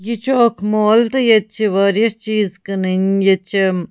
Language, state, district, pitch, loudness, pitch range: Kashmiri, Punjab, Kapurthala, 210 Hz, -15 LUFS, 195-225 Hz